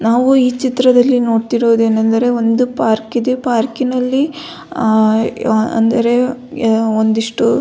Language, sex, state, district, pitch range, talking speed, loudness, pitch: Kannada, female, Karnataka, Belgaum, 225-255 Hz, 80 wpm, -14 LUFS, 240 Hz